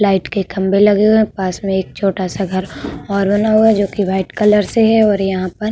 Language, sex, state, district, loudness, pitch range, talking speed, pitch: Hindi, female, Uttar Pradesh, Budaun, -15 LUFS, 190-210 Hz, 250 wpm, 200 Hz